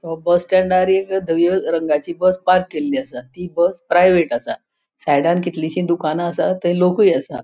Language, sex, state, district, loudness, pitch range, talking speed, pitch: Konkani, female, Goa, North and South Goa, -17 LUFS, 160-185 Hz, 170 wpm, 175 Hz